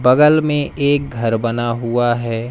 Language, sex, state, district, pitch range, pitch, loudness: Hindi, male, Madhya Pradesh, Umaria, 115-145 Hz, 120 Hz, -16 LUFS